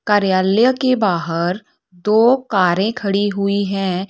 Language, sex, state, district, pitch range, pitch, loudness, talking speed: Hindi, female, Uttar Pradesh, Lalitpur, 185-215 Hz, 200 Hz, -17 LUFS, 115 wpm